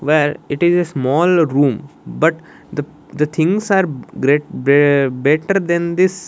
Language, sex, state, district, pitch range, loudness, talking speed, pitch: English, male, Odisha, Malkangiri, 145-175 Hz, -16 LUFS, 155 wpm, 150 Hz